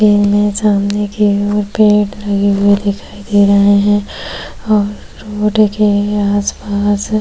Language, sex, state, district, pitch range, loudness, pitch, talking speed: Hindi, female, Uttar Pradesh, Jyotiba Phule Nagar, 200-210 Hz, -13 LUFS, 205 Hz, 140 wpm